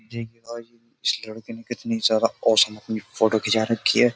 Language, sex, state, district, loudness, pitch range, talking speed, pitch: Hindi, male, Uttar Pradesh, Jyotiba Phule Nagar, -22 LUFS, 110-115 Hz, 160 wpm, 115 Hz